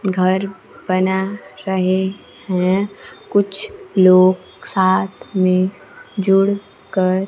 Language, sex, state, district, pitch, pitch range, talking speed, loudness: Hindi, female, Bihar, Kaimur, 190 Hz, 185-195 Hz, 75 wpm, -17 LUFS